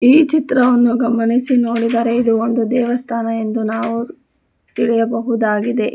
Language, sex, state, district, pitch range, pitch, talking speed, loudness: Kannada, female, Karnataka, Bangalore, 230-245 Hz, 235 Hz, 100 wpm, -16 LUFS